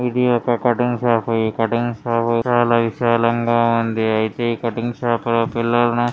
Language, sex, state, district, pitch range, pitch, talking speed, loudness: Telugu, male, Andhra Pradesh, Srikakulam, 115-120 Hz, 120 Hz, 155 wpm, -18 LUFS